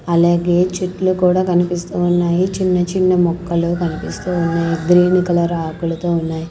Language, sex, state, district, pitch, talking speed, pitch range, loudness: Telugu, female, Andhra Pradesh, Sri Satya Sai, 175 Hz, 130 wpm, 170-180 Hz, -16 LUFS